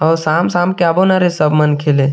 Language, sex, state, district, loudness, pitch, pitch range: Chhattisgarhi, male, Chhattisgarh, Sarguja, -13 LUFS, 165 Hz, 150-175 Hz